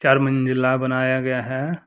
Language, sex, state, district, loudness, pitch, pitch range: Hindi, male, Jharkhand, Deoghar, -20 LUFS, 130 Hz, 130-135 Hz